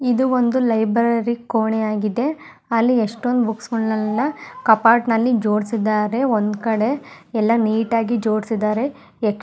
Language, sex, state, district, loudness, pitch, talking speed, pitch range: Kannada, female, Karnataka, Mysore, -19 LUFS, 225 Hz, 95 wpm, 215-240 Hz